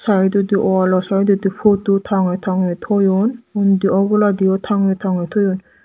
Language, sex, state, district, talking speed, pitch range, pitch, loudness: Chakma, female, Tripura, Dhalai, 125 wpm, 190-205 Hz, 195 Hz, -16 LUFS